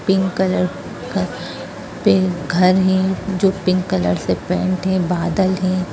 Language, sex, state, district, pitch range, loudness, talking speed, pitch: Hindi, female, Bihar, Sitamarhi, 180-190 Hz, -18 LUFS, 130 wpm, 185 Hz